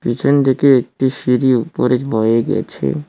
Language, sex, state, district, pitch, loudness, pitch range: Bengali, male, West Bengal, Cooch Behar, 130 Hz, -15 LUFS, 125-140 Hz